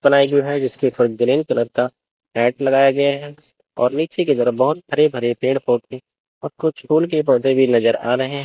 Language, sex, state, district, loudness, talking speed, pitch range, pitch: Hindi, male, Chandigarh, Chandigarh, -18 LUFS, 215 wpm, 125-145 Hz, 135 Hz